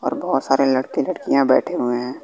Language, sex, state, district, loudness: Hindi, male, Bihar, West Champaran, -19 LUFS